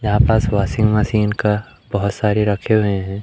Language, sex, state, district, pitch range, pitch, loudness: Hindi, male, Madhya Pradesh, Umaria, 100-110 Hz, 105 Hz, -17 LUFS